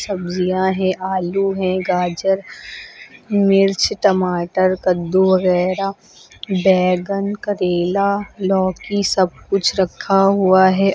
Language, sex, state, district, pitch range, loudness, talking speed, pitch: Hindi, female, Uttar Pradesh, Lucknow, 185-195 Hz, -17 LUFS, 95 wpm, 190 Hz